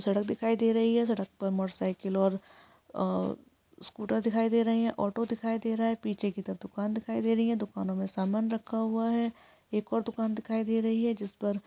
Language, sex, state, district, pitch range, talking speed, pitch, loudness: Hindi, female, Chhattisgarh, Jashpur, 200-230 Hz, 210 wpm, 225 Hz, -30 LUFS